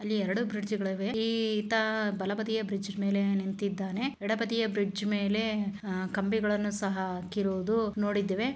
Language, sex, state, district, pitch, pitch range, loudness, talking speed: Kannada, female, Karnataka, Chamarajanagar, 205 Hz, 200-220 Hz, -31 LUFS, 110 wpm